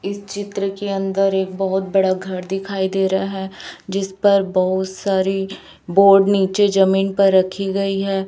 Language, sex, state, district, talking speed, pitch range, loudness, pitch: Hindi, female, Chhattisgarh, Raipur, 165 wpm, 190-195 Hz, -18 LUFS, 195 Hz